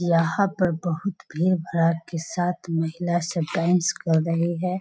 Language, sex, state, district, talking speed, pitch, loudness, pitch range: Hindi, female, Bihar, Sitamarhi, 160 wpm, 170 Hz, -24 LUFS, 165-180 Hz